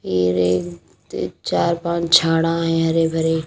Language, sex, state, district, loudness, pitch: Hindi, female, Haryana, Rohtak, -19 LUFS, 165 Hz